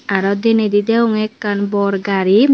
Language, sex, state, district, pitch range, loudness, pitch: Chakma, female, Tripura, Unakoti, 200-225 Hz, -16 LUFS, 205 Hz